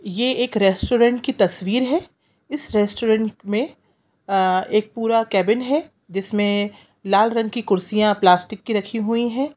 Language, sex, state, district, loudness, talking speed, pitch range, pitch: Hindi, female, Bihar, Sitamarhi, -20 LUFS, 150 wpm, 200-235 Hz, 215 Hz